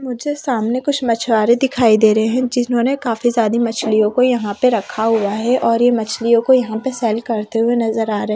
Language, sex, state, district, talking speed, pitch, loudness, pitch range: Hindi, female, Haryana, Rohtak, 215 wpm, 230 Hz, -16 LUFS, 220-250 Hz